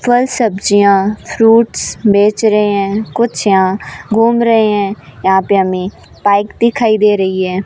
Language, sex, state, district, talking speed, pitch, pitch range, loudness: Hindi, female, Rajasthan, Bikaner, 150 wpm, 205 Hz, 195-225 Hz, -12 LUFS